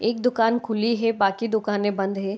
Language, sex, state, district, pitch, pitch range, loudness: Hindi, female, Bihar, Begusarai, 220 Hz, 205-230 Hz, -23 LUFS